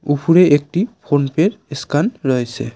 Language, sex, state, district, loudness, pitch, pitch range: Bengali, male, West Bengal, Cooch Behar, -16 LUFS, 145 Hz, 135-175 Hz